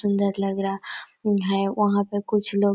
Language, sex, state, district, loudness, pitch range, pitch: Hindi, female, Chhattisgarh, Korba, -24 LUFS, 195-205 Hz, 200 Hz